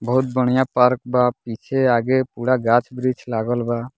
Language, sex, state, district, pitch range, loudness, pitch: Bhojpuri, male, Bihar, Muzaffarpur, 120-130 Hz, -19 LUFS, 125 Hz